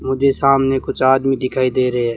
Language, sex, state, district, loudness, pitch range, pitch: Hindi, male, Rajasthan, Bikaner, -16 LUFS, 130-135 Hz, 130 Hz